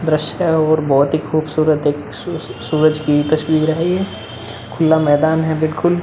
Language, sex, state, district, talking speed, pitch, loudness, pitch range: Hindi, male, Uttar Pradesh, Muzaffarnagar, 160 wpm, 155 Hz, -16 LUFS, 145-160 Hz